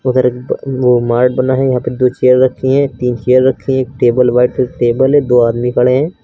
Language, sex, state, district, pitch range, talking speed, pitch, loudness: Hindi, male, Uttar Pradesh, Lucknow, 125-130 Hz, 260 wpm, 125 Hz, -12 LUFS